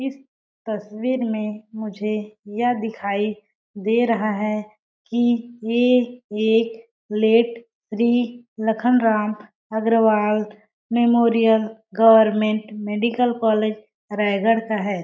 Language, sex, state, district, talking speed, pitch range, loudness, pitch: Hindi, female, Chhattisgarh, Balrampur, 90 wpm, 215-235 Hz, -21 LUFS, 220 Hz